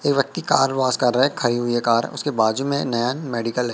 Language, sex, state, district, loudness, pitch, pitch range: Hindi, male, Madhya Pradesh, Katni, -21 LUFS, 125 Hz, 120-140 Hz